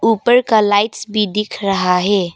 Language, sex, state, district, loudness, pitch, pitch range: Hindi, female, Arunachal Pradesh, Papum Pare, -15 LUFS, 210 Hz, 195-220 Hz